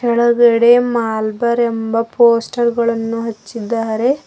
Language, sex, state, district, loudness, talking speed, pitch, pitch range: Kannada, female, Karnataka, Bidar, -15 LUFS, 85 wpm, 235 Hz, 230-235 Hz